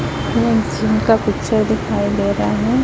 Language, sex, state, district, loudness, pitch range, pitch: Hindi, female, Chhattisgarh, Raipur, -17 LUFS, 105-115 Hz, 110 Hz